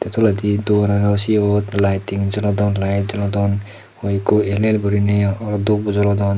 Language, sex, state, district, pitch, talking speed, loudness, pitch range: Chakma, male, Tripura, Dhalai, 100 Hz, 140 wpm, -18 LUFS, 100-105 Hz